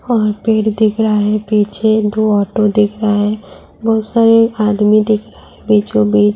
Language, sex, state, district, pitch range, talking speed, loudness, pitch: Hindi, female, Uttar Pradesh, Budaun, 210-220 Hz, 190 wpm, -13 LUFS, 215 Hz